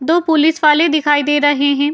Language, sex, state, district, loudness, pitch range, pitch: Hindi, female, Uttar Pradesh, Jyotiba Phule Nagar, -13 LUFS, 290-320 Hz, 295 Hz